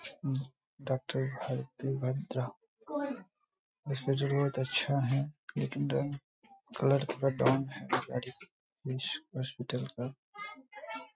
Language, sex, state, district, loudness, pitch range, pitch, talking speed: Hindi, male, Bihar, Saharsa, -34 LUFS, 130-195 Hz, 140 Hz, 90 wpm